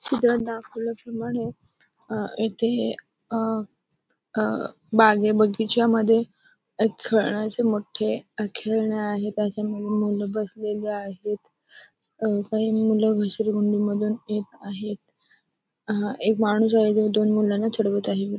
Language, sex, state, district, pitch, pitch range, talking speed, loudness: Marathi, female, Maharashtra, Aurangabad, 215 Hz, 210-225 Hz, 110 wpm, -24 LUFS